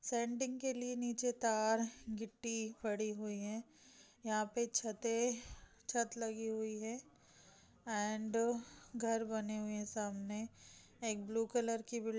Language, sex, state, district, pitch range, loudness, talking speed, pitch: Hindi, female, Maharashtra, Chandrapur, 215-235 Hz, -40 LUFS, 145 wpm, 225 Hz